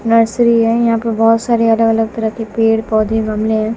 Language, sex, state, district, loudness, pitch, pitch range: Hindi, female, Bihar, West Champaran, -14 LUFS, 225 Hz, 220-230 Hz